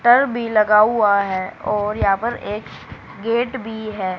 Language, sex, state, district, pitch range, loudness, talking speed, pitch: Hindi, female, Haryana, Charkhi Dadri, 205-235 Hz, -19 LUFS, 170 wpm, 215 Hz